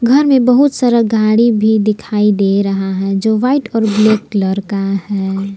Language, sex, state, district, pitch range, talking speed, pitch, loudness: Hindi, female, Jharkhand, Palamu, 195-235 Hz, 185 wpm, 215 Hz, -13 LUFS